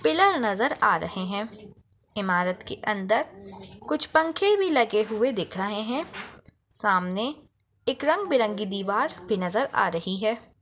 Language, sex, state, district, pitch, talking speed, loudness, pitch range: Hindi, female, Chhattisgarh, Bastar, 210 Hz, 140 wpm, -25 LUFS, 195-250 Hz